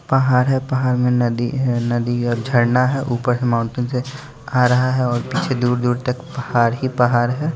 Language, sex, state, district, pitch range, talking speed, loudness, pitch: Hindi, male, Bihar, West Champaran, 120-130 Hz, 200 wpm, -18 LUFS, 125 Hz